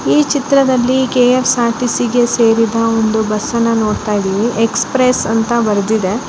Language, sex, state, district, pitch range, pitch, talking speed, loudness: Kannada, male, Karnataka, Bellary, 220-250 Hz, 230 Hz, 135 wpm, -13 LUFS